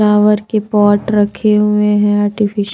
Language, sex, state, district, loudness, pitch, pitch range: Hindi, female, Maharashtra, Washim, -13 LUFS, 210 Hz, 205-210 Hz